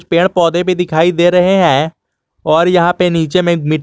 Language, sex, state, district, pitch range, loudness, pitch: Hindi, male, Jharkhand, Garhwa, 165-180 Hz, -12 LUFS, 175 Hz